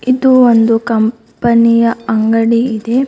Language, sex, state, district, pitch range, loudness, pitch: Kannada, female, Karnataka, Bidar, 225-240 Hz, -11 LUFS, 230 Hz